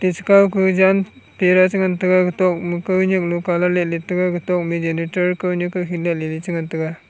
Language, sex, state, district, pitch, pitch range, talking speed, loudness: Wancho, male, Arunachal Pradesh, Longding, 180 Hz, 175-185 Hz, 220 wpm, -18 LUFS